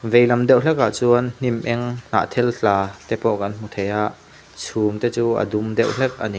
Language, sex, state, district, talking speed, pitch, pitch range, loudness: Mizo, male, Mizoram, Aizawl, 235 wpm, 115 Hz, 105-120 Hz, -20 LUFS